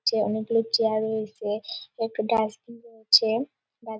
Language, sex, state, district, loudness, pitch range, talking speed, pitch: Bengali, female, West Bengal, Dakshin Dinajpur, -25 LUFS, 215-225 Hz, 165 wpm, 220 Hz